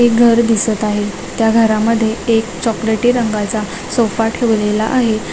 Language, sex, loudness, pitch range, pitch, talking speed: Marathi, female, -15 LUFS, 215-230 Hz, 225 Hz, 135 wpm